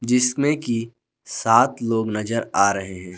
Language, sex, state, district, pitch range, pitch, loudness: Hindi, male, Jharkhand, Garhwa, 105-120 Hz, 115 Hz, -21 LUFS